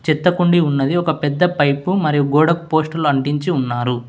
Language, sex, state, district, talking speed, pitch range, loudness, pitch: Telugu, male, Telangana, Hyderabad, 160 wpm, 140-170 Hz, -17 LUFS, 155 Hz